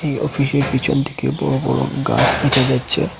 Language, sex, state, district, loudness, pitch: Bengali, male, Assam, Hailakandi, -16 LUFS, 140 Hz